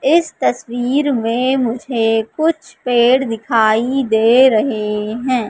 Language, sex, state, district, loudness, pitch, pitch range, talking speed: Hindi, female, Madhya Pradesh, Katni, -15 LUFS, 245 Hz, 225-265 Hz, 110 wpm